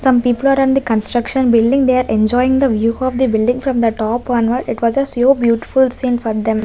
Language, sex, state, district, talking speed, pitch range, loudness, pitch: English, female, Maharashtra, Gondia, 245 wpm, 230-260 Hz, -15 LUFS, 245 Hz